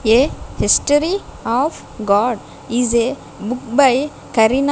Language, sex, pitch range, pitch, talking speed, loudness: English, female, 230-285 Hz, 250 Hz, 125 wpm, -17 LUFS